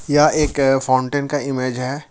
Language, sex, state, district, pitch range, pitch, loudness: Hindi, male, Jharkhand, Ranchi, 130-145 Hz, 140 Hz, -18 LUFS